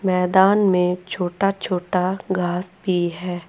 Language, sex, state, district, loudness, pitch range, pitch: Hindi, female, Uttar Pradesh, Saharanpur, -20 LUFS, 180-190 Hz, 180 Hz